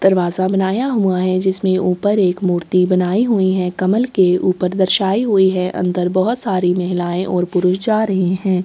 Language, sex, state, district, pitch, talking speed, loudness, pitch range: Hindi, female, Chhattisgarh, Sukma, 185 Hz, 180 wpm, -16 LUFS, 180-195 Hz